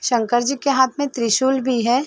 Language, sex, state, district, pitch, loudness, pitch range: Hindi, female, Uttar Pradesh, Varanasi, 260 Hz, -19 LUFS, 240-270 Hz